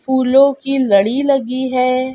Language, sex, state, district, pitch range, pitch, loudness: Hindi, female, Uttar Pradesh, Hamirpur, 255-275 Hz, 260 Hz, -14 LUFS